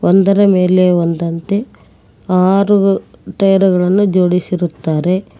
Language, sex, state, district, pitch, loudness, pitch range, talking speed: Kannada, female, Karnataka, Koppal, 185 Hz, -13 LUFS, 180-195 Hz, 80 wpm